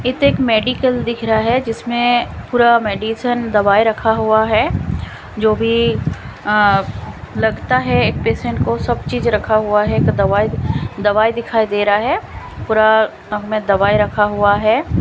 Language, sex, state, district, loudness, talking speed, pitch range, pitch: Hindi, female, Punjab, Kapurthala, -16 LUFS, 160 wpm, 205-230 Hz, 220 Hz